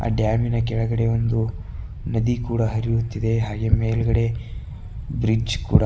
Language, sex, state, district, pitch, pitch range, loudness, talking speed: Kannada, male, Karnataka, Bidar, 115 Hz, 110-115 Hz, -22 LUFS, 125 wpm